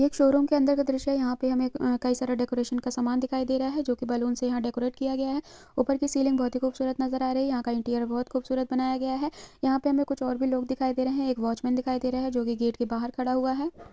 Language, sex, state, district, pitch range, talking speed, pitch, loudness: Hindi, female, Chhattisgarh, Sukma, 250-270 Hz, 310 wpm, 260 Hz, -27 LUFS